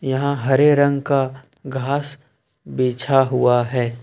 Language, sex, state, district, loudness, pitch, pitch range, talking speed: Hindi, male, Jharkhand, Ranchi, -19 LUFS, 135 Hz, 125-140 Hz, 120 wpm